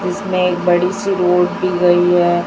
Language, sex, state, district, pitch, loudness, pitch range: Hindi, female, Chhattisgarh, Raipur, 180 Hz, -15 LUFS, 175-185 Hz